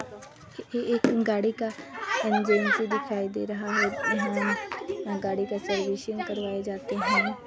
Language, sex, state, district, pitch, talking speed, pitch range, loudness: Hindi, female, Chhattisgarh, Sarguja, 210 Hz, 130 wpm, 200-225 Hz, -27 LUFS